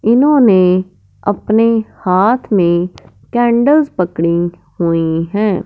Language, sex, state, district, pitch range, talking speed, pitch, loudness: Hindi, female, Punjab, Fazilka, 175-235 Hz, 85 wpm, 195 Hz, -13 LUFS